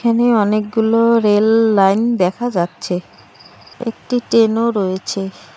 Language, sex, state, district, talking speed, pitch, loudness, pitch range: Bengali, female, West Bengal, Cooch Behar, 110 wpm, 220 Hz, -16 LUFS, 195-230 Hz